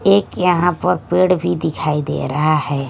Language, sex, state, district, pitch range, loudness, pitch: Hindi, female, Haryana, Charkhi Dadri, 150-180 Hz, -17 LUFS, 170 Hz